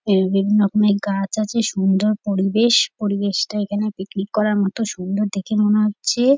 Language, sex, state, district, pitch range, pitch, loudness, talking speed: Bengali, female, West Bengal, North 24 Parganas, 195-215 Hz, 205 Hz, -19 LUFS, 140 wpm